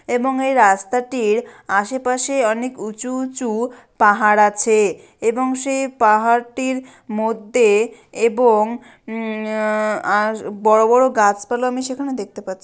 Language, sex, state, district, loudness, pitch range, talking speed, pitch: Bengali, female, West Bengal, Malda, -18 LUFS, 215-255 Hz, 115 wpm, 230 Hz